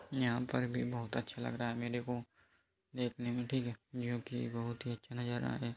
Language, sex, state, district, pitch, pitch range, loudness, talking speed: Hindi, male, Uttar Pradesh, Hamirpur, 120 Hz, 120-125 Hz, -39 LUFS, 210 wpm